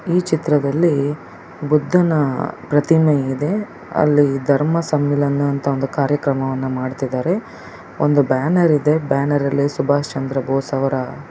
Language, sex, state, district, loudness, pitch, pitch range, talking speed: Kannada, male, Karnataka, Dakshina Kannada, -18 LUFS, 145 Hz, 135-155 Hz, 110 wpm